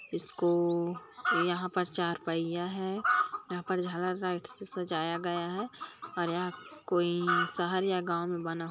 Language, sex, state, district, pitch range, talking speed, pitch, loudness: Hindi, female, Chhattisgarh, Kabirdham, 175-185 Hz, 160 wpm, 180 Hz, -32 LUFS